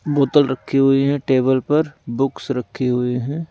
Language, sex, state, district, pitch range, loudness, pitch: Hindi, male, Delhi, New Delhi, 130-145 Hz, -19 LUFS, 135 Hz